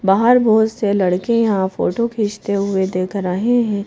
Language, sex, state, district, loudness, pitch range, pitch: Hindi, female, Madhya Pradesh, Bhopal, -17 LUFS, 190-225 Hz, 205 Hz